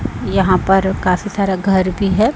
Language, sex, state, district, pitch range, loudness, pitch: Hindi, male, Chhattisgarh, Raipur, 185-200 Hz, -16 LUFS, 190 Hz